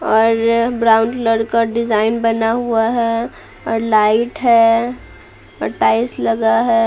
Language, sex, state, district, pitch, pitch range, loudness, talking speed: Hindi, female, Bihar, Patna, 230 Hz, 225-235 Hz, -15 LUFS, 130 wpm